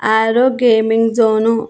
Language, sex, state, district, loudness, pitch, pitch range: Telugu, female, Andhra Pradesh, Annamaya, -13 LUFS, 225 Hz, 220-230 Hz